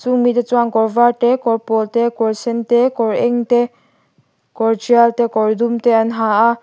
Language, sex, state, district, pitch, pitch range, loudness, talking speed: Mizo, female, Mizoram, Aizawl, 235 Hz, 225-240 Hz, -15 LUFS, 225 wpm